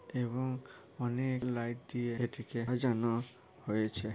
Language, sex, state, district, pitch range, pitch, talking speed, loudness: Bengali, male, West Bengal, Paschim Medinipur, 115-125 Hz, 120 Hz, 115 wpm, -36 LUFS